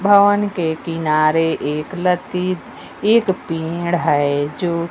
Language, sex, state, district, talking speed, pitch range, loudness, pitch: Hindi, female, Bihar, West Champaran, 110 wpm, 160-185 Hz, -18 LUFS, 170 Hz